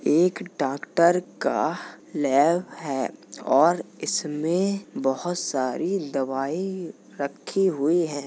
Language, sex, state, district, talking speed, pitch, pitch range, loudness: Hindi, male, Uttar Pradesh, Jalaun, 95 wpm, 170 Hz, 140-185 Hz, -25 LUFS